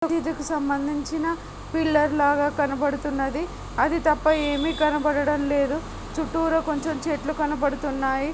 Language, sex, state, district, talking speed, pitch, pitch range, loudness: Telugu, male, Telangana, Nalgonda, 100 wpm, 300 Hz, 285-315 Hz, -24 LUFS